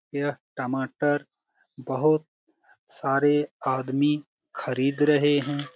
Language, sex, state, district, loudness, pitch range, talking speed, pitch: Hindi, male, Bihar, Jamui, -25 LUFS, 135-150 Hz, 85 wpm, 145 Hz